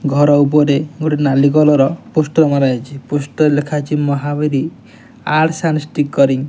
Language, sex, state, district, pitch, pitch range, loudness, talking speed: Odia, male, Odisha, Nuapada, 145 Hz, 140-155 Hz, -15 LUFS, 155 wpm